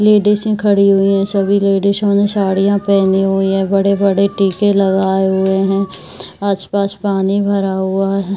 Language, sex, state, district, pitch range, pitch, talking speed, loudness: Hindi, female, Bihar, Saharsa, 195-200 Hz, 195 Hz, 160 wpm, -14 LUFS